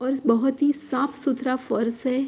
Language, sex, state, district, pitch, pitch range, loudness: Hindi, female, Uttar Pradesh, Hamirpur, 260 Hz, 255-275 Hz, -24 LUFS